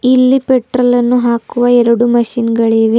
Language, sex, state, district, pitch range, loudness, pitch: Kannada, female, Karnataka, Bidar, 235-250 Hz, -11 LUFS, 240 Hz